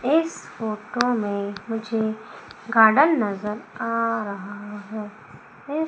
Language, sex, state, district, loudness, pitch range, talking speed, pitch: Hindi, female, Madhya Pradesh, Umaria, -23 LUFS, 210-230 Hz, 100 wpm, 220 Hz